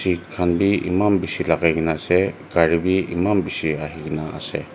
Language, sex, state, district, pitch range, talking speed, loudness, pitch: Nagamese, male, Nagaland, Dimapur, 80-95 Hz, 190 wpm, -21 LUFS, 85 Hz